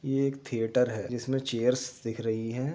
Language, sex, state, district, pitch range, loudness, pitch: Hindi, male, Uttar Pradesh, Jyotiba Phule Nagar, 115-135 Hz, -30 LUFS, 125 Hz